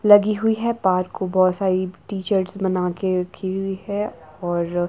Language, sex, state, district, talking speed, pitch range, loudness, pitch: Hindi, female, Himachal Pradesh, Shimla, 160 wpm, 180-200 Hz, -22 LUFS, 185 Hz